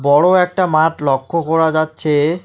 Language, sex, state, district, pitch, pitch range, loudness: Bengali, male, West Bengal, Alipurduar, 160 Hz, 150-170 Hz, -15 LUFS